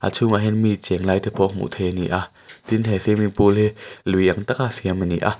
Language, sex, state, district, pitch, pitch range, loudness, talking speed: Mizo, male, Mizoram, Aizawl, 100 Hz, 95-105 Hz, -20 LUFS, 275 wpm